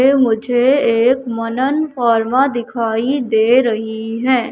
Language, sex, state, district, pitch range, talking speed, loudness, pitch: Hindi, female, Madhya Pradesh, Katni, 230-260 Hz, 120 wpm, -15 LUFS, 240 Hz